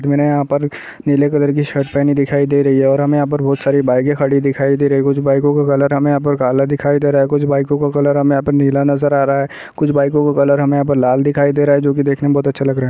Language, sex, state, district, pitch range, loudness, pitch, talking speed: Hindi, male, Bihar, Saharsa, 140-145 Hz, -14 LUFS, 140 Hz, 315 wpm